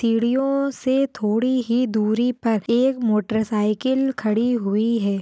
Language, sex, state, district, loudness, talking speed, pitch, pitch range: Hindi, female, Uttar Pradesh, Deoria, -21 LUFS, 140 wpm, 230 Hz, 215-255 Hz